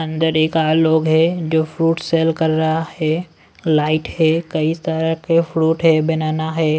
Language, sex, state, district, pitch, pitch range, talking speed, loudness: Hindi, male, Delhi, New Delhi, 160 Hz, 155-165 Hz, 175 wpm, -17 LUFS